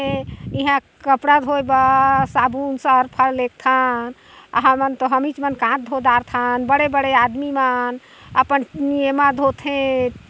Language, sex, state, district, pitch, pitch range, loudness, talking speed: Chhattisgarhi, female, Chhattisgarh, Korba, 265 Hz, 255-280 Hz, -18 LUFS, 115 wpm